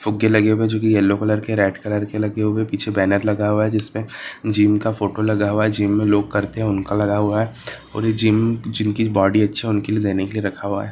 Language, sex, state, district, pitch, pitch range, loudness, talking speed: Marwari, male, Rajasthan, Nagaur, 105 Hz, 105-110 Hz, -19 LUFS, 285 wpm